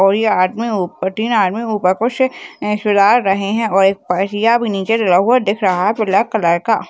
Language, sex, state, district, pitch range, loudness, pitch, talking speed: Hindi, female, Rajasthan, Nagaur, 195-225 Hz, -15 LUFS, 210 Hz, 95 wpm